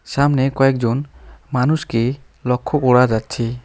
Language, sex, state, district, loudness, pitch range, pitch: Bengali, male, West Bengal, Alipurduar, -18 LUFS, 120-140 Hz, 130 Hz